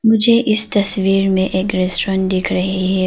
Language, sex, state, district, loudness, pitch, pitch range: Hindi, female, Arunachal Pradesh, Papum Pare, -14 LUFS, 190 Hz, 185-210 Hz